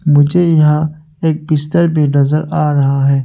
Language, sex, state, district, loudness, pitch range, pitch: Hindi, male, Arunachal Pradesh, Longding, -13 LUFS, 145-160 Hz, 150 Hz